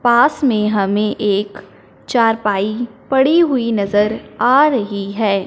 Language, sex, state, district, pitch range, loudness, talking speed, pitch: Hindi, female, Punjab, Fazilka, 205-250 Hz, -16 LUFS, 120 wpm, 220 Hz